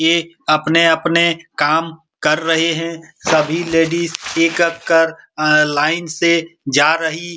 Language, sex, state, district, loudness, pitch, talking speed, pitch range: Hindi, male, Bihar, Supaul, -16 LUFS, 165 Hz, 155 wpm, 160-170 Hz